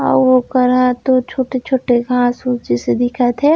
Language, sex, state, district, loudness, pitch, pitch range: Chhattisgarhi, female, Chhattisgarh, Raigarh, -15 LUFS, 250 Hz, 245-260 Hz